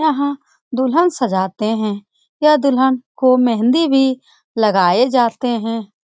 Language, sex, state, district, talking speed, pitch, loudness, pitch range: Hindi, female, Bihar, Lakhisarai, 120 wpm, 255 Hz, -16 LUFS, 225-275 Hz